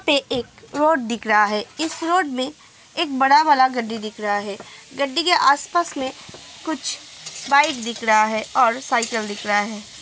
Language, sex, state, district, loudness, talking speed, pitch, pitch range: Hindi, female, Uttar Pradesh, Hamirpur, -20 LUFS, 180 wpm, 260 Hz, 215-300 Hz